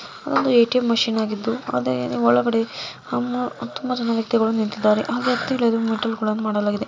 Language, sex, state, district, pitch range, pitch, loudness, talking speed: Kannada, female, Karnataka, Mysore, 215-240 Hz, 225 Hz, -21 LUFS, 120 wpm